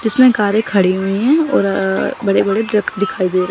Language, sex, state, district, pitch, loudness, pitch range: Hindi, female, Chandigarh, Chandigarh, 205 Hz, -15 LUFS, 195-220 Hz